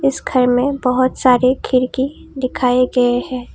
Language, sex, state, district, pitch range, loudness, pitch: Hindi, female, Assam, Kamrup Metropolitan, 250-260 Hz, -16 LUFS, 255 Hz